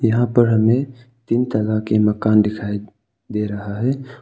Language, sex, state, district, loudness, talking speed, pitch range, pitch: Hindi, male, Arunachal Pradesh, Papum Pare, -19 LUFS, 155 wpm, 105-120 Hz, 110 Hz